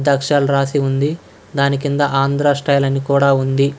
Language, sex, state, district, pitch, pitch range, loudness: Telugu, male, Karnataka, Bangalore, 140 Hz, 135-145 Hz, -16 LUFS